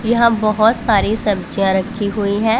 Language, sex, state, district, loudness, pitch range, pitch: Hindi, female, Punjab, Pathankot, -16 LUFS, 200-225 Hz, 215 Hz